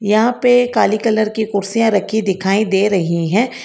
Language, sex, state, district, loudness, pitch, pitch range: Hindi, female, Karnataka, Bangalore, -15 LUFS, 215 Hz, 195-225 Hz